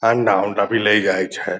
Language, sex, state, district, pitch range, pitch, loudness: Angika, male, Bihar, Purnia, 100-115 Hz, 105 Hz, -18 LUFS